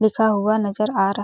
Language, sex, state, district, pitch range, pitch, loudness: Hindi, female, Chhattisgarh, Balrampur, 200-220 Hz, 215 Hz, -20 LUFS